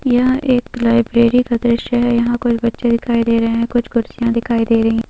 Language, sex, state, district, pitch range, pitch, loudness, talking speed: Hindi, female, Chhattisgarh, Rajnandgaon, 230-240 Hz, 235 Hz, -15 LUFS, 225 wpm